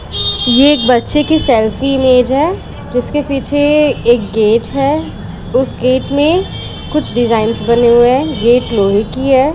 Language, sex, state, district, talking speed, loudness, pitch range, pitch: Hindi, female, Chhattisgarh, Raipur, 155 wpm, -12 LUFS, 235-290 Hz, 255 Hz